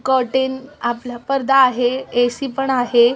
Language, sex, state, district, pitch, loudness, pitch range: Marathi, female, Maharashtra, Aurangabad, 260 Hz, -18 LUFS, 245-265 Hz